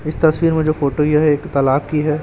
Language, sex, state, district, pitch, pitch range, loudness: Hindi, male, Chhattisgarh, Raipur, 150 Hz, 145-155 Hz, -16 LUFS